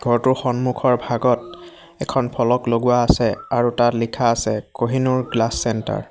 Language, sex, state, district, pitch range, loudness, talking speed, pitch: Assamese, male, Assam, Hailakandi, 115-130 Hz, -19 LUFS, 145 wpm, 120 Hz